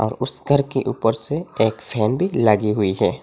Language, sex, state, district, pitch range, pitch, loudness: Hindi, male, Assam, Hailakandi, 110-140 Hz, 115 Hz, -20 LUFS